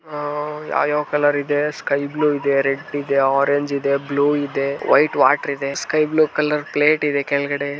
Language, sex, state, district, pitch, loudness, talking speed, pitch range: Kannada, male, Karnataka, Dharwad, 145 Hz, -19 LUFS, 160 wpm, 140-150 Hz